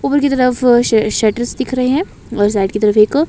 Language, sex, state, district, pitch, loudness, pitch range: Hindi, female, Himachal Pradesh, Shimla, 240 Hz, -14 LUFS, 215-255 Hz